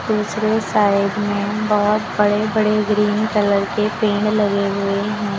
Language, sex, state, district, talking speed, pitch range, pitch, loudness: Hindi, female, Uttar Pradesh, Lucknow, 145 wpm, 205-215 Hz, 210 Hz, -18 LUFS